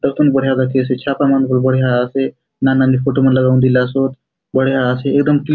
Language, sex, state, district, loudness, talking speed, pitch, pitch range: Halbi, male, Chhattisgarh, Bastar, -15 LUFS, 205 wpm, 130 Hz, 130-135 Hz